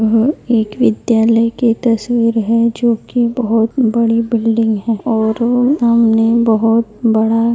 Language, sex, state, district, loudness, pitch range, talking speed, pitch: Hindi, male, Maharashtra, Nagpur, -14 LUFS, 225-235 Hz, 135 wpm, 230 Hz